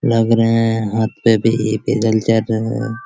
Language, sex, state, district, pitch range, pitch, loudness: Hindi, male, Bihar, Araria, 110-115 Hz, 115 Hz, -16 LUFS